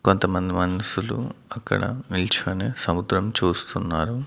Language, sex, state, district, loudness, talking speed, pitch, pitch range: Telugu, male, Andhra Pradesh, Manyam, -24 LUFS, 85 wpm, 95 Hz, 90-110 Hz